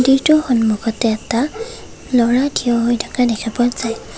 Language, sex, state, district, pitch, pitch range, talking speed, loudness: Assamese, female, Assam, Kamrup Metropolitan, 240 Hz, 230-265 Hz, 130 wpm, -17 LUFS